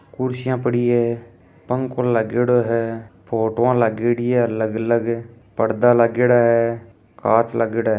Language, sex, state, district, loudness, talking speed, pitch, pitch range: Hindi, male, Rajasthan, Nagaur, -19 LUFS, 130 wpm, 115 Hz, 115-120 Hz